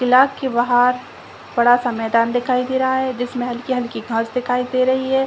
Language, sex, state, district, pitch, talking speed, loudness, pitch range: Hindi, female, Chhattisgarh, Bilaspur, 250 Hz, 195 wpm, -18 LUFS, 240-260 Hz